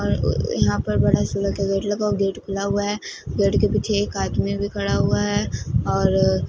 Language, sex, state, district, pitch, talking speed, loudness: Hindi, female, Punjab, Fazilka, 195 Hz, 230 wpm, -22 LUFS